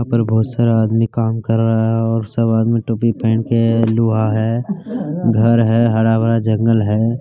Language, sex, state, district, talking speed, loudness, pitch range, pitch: Hindi, male, Bihar, Kishanganj, 185 wpm, -16 LUFS, 110-115 Hz, 115 Hz